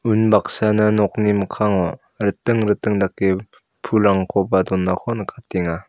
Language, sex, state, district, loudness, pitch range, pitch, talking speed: Garo, male, Meghalaya, South Garo Hills, -19 LUFS, 95-105 Hz, 100 Hz, 90 wpm